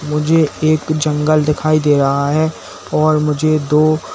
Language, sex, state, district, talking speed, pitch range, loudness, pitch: Hindi, male, Uttar Pradesh, Saharanpur, 145 wpm, 150-155 Hz, -15 LUFS, 155 Hz